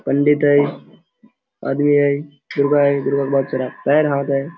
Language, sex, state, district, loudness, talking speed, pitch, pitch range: Hindi, male, Jharkhand, Sahebganj, -17 LUFS, 185 wpm, 145 Hz, 140-150 Hz